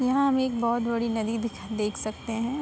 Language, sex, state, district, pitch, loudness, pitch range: Hindi, female, Uttar Pradesh, Budaun, 230 Hz, -27 LUFS, 220-255 Hz